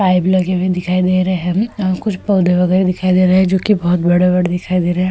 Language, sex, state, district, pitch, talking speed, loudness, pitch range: Hindi, female, Uttar Pradesh, Etah, 185 Hz, 245 wpm, -14 LUFS, 180-185 Hz